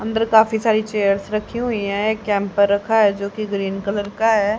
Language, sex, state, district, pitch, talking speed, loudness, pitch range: Hindi, female, Haryana, Charkhi Dadri, 210 Hz, 220 wpm, -19 LUFS, 200-220 Hz